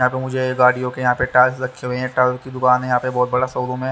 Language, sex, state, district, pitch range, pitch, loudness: Hindi, male, Haryana, Charkhi Dadri, 125-130 Hz, 125 Hz, -18 LUFS